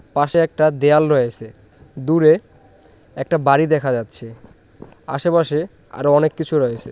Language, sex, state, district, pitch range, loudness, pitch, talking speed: Bengali, male, West Bengal, Jhargram, 120-155 Hz, -17 LUFS, 145 Hz, 120 wpm